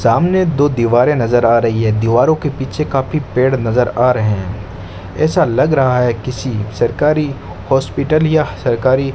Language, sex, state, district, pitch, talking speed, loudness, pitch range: Hindi, male, Rajasthan, Bikaner, 125 Hz, 170 wpm, -14 LUFS, 115-145 Hz